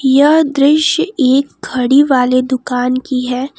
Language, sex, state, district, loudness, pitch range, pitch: Hindi, female, Jharkhand, Palamu, -13 LUFS, 255-285 Hz, 265 Hz